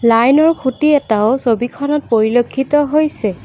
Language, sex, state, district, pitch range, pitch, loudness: Assamese, female, Assam, Kamrup Metropolitan, 230-295 Hz, 260 Hz, -14 LUFS